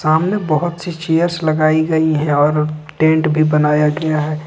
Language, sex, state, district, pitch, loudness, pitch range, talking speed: Hindi, male, Jharkhand, Ranchi, 155 Hz, -15 LUFS, 150-160 Hz, 175 wpm